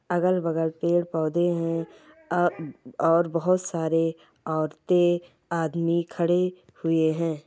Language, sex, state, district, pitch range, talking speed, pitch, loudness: Hindi, female, Bihar, Jamui, 165-175 Hz, 120 wpm, 170 Hz, -25 LUFS